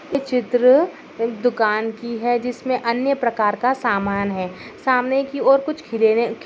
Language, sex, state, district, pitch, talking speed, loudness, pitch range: Hindi, female, Maharashtra, Pune, 240 Hz, 165 wpm, -20 LUFS, 225-260 Hz